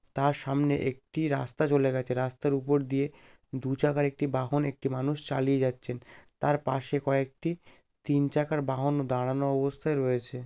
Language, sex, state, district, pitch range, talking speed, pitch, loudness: Bengali, male, West Bengal, Malda, 130-145 Hz, 155 wpm, 135 Hz, -29 LUFS